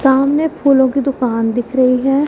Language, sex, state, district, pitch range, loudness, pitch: Hindi, female, Punjab, Fazilka, 255-275 Hz, -14 LUFS, 270 Hz